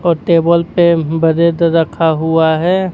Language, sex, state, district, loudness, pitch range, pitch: Hindi, male, Bihar, Kaimur, -12 LUFS, 160-170 Hz, 170 Hz